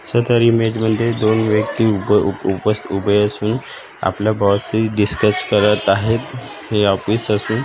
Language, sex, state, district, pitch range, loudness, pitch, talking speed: Marathi, male, Maharashtra, Gondia, 105-115 Hz, -16 LUFS, 110 Hz, 135 wpm